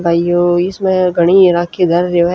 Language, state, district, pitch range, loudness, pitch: Haryanvi, Haryana, Rohtak, 175-185 Hz, -12 LUFS, 175 Hz